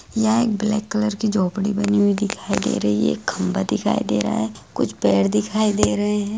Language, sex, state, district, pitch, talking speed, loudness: Hindi, female, Bihar, Begusarai, 205 Hz, 225 wpm, -20 LUFS